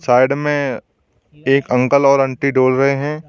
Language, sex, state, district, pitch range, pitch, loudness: Hindi, male, Uttar Pradesh, Shamli, 130-140 Hz, 140 Hz, -15 LUFS